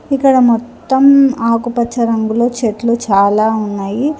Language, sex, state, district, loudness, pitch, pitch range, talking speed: Telugu, female, Telangana, Hyderabad, -13 LUFS, 235 Hz, 220-260 Hz, 100 wpm